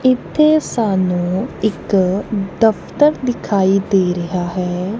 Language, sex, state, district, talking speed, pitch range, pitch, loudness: Punjabi, female, Punjab, Kapurthala, 95 wpm, 185-225 Hz, 195 Hz, -16 LUFS